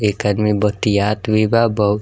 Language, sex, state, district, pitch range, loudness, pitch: Bhojpuri, male, Bihar, East Champaran, 105-110 Hz, -17 LUFS, 105 Hz